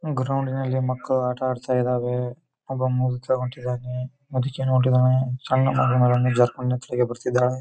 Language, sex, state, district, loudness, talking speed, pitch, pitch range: Kannada, male, Karnataka, Bijapur, -23 LUFS, 140 wpm, 125 Hz, 125-130 Hz